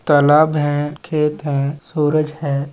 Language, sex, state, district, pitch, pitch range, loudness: Chhattisgarhi, male, Chhattisgarh, Balrampur, 150 Hz, 145-155 Hz, -17 LUFS